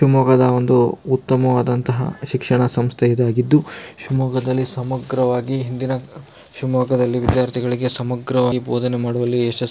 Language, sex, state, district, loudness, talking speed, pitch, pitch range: Kannada, male, Karnataka, Shimoga, -19 LUFS, 95 wpm, 125 Hz, 125-130 Hz